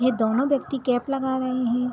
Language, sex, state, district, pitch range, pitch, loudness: Hindi, female, Uttar Pradesh, Hamirpur, 245-265 Hz, 255 Hz, -24 LUFS